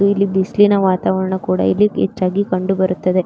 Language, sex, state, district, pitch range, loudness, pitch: Kannada, female, Karnataka, Gulbarga, 185-200 Hz, -16 LUFS, 190 Hz